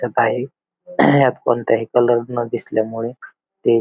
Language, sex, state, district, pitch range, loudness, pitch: Marathi, male, Maharashtra, Aurangabad, 115-120 Hz, -18 LUFS, 120 Hz